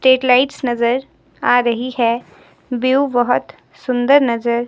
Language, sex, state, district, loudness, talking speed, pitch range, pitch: Hindi, female, Himachal Pradesh, Shimla, -16 LUFS, 130 wpm, 240-260 Hz, 245 Hz